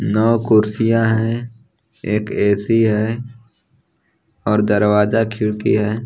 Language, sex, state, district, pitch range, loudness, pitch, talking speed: Hindi, male, Odisha, Nuapada, 105-115 Hz, -17 LUFS, 110 Hz, 100 wpm